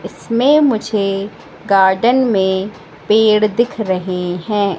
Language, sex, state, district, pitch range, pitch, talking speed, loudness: Hindi, female, Madhya Pradesh, Katni, 190-230 Hz, 210 Hz, 100 wpm, -15 LUFS